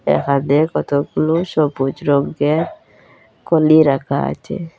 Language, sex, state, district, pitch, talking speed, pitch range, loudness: Bengali, female, Assam, Hailakandi, 145 Hz, 90 wpm, 140-160 Hz, -17 LUFS